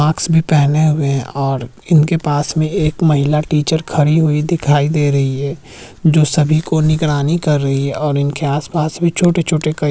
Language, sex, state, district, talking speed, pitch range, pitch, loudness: Hindi, male, Uttarakhand, Tehri Garhwal, 195 wpm, 145-160 Hz, 150 Hz, -15 LUFS